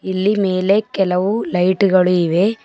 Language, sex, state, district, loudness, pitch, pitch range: Kannada, female, Karnataka, Bidar, -16 LUFS, 190 Hz, 180-200 Hz